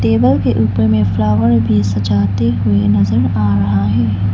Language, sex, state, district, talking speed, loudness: Hindi, female, Arunachal Pradesh, Lower Dibang Valley, 165 wpm, -14 LUFS